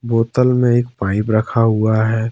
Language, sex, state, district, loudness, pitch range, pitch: Hindi, male, Jharkhand, Ranchi, -16 LUFS, 110-120 Hz, 115 Hz